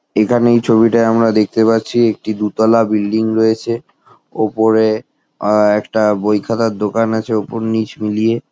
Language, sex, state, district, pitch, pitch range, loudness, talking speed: Bengali, male, West Bengal, Jalpaiguri, 110 Hz, 105-115 Hz, -15 LUFS, 150 wpm